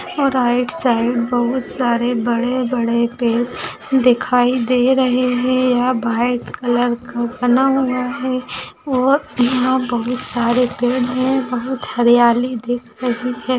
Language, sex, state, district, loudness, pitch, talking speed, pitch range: Hindi, female, Maharashtra, Aurangabad, -17 LUFS, 250 Hz, 125 wpm, 240-255 Hz